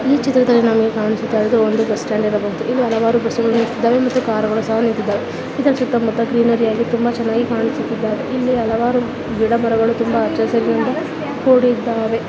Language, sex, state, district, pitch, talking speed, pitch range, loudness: Kannada, female, Karnataka, Dakshina Kannada, 230 Hz, 155 wpm, 225-245 Hz, -17 LUFS